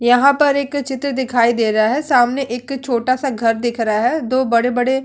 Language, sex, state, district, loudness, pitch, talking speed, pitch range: Hindi, female, Uttar Pradesh, Jalaun, -17 LUFS, 250 Hz, 225 wpm, 235-275 Hz